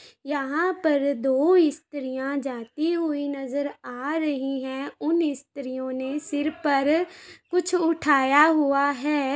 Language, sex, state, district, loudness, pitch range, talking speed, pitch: Hindi, female, Uttar Pradesh, Varanasi, -24 LUFS, 275-320 Hz, 120 wpm, 285 Hz